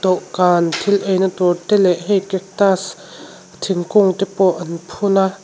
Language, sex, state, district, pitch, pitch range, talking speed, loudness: Mizo, female, Mizoram, Aizawl, 190 Hz, 180-195 Hz, 145 wpm, -17 LUFS